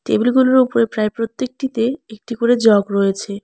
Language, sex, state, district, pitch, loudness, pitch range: Bengali, female, West Bengal, Alipurduar, 230 Hz, -17 LUFS, 210-250 Hz